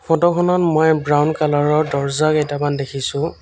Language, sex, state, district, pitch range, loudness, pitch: Assamese, male, Assam, Sonitpur, 145-160 Hz, -17 LUFS, 150 Hz